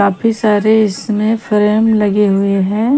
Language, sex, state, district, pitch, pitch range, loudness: Hindi, female, Haryana, Charkhi Dadri, 210 Hz, 205-220 Hz, -13 LUFS